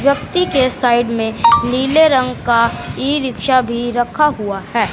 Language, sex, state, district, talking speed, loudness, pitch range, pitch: Hindi, female, Punjab, Fazilka, 160 wpm, -15 LUFS, 235-280 Hz, 250 Hz